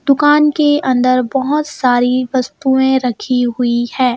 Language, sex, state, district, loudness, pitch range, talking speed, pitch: Hindi, female, Madhya Pradesh, Bhopal, -14 LUFS, 250-285 Hz, 130 wpm, 260 Hz